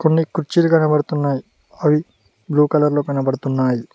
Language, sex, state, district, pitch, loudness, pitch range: Telugu, male, Telangana, Mahabubabad, 150 Hz, -18 LUFS, 140-160 Hz